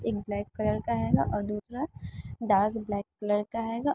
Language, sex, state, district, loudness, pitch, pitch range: Hindi, female, Uttar Pradesh, Varanasi, -30 LUFS, 210 Hz, 205-230 Hz